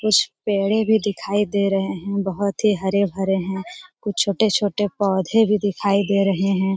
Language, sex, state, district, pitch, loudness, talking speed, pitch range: Hindi, female, Jharkhand, Jamtara, 200 Hz, -20 LUFS, 215 wpm, 195-210 Hz